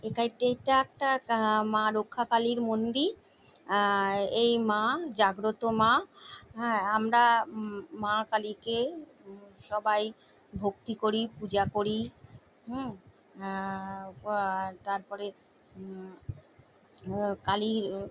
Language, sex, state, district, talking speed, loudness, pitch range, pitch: Bengali, female, West Bengal, Jalpaiguri, 95 wpm, -29 LUFS, 200-230 Hz, 215 Hz